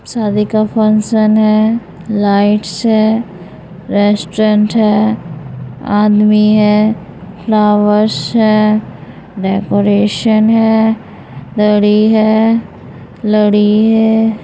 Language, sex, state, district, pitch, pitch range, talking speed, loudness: Hindi, female, Bihar, Supaul, 215 Hz, 205-220 Hz, 75 wpm, -11 LUFS